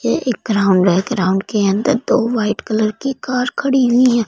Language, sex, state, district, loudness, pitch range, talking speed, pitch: Hindi, female, Punjab, Fazilka, -16 LUFS, 200-250 Hz, 210 wpm, 230 Hz